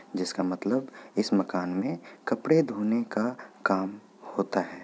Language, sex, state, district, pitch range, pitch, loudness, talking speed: Hindi, male, Bihar, Kishanganj, 95-120 Hz, 100 Hz, -29 LUFS, 135 wpm